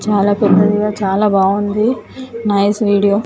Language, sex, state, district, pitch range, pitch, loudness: Telugu, female, Telangana, Nalgonda, 200-210 Hz, 205 Hz, -14 LUFS